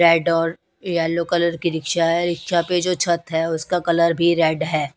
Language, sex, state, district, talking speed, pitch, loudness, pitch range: Hindi, female, Bihar, West Champaran, 205 wpm, 170 Hz, -20 LUFS, 165-170 Hz